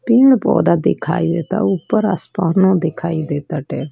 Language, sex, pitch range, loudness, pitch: Bhojpuri, female, 165-210 Hz, -16 LUFS, 180 Hz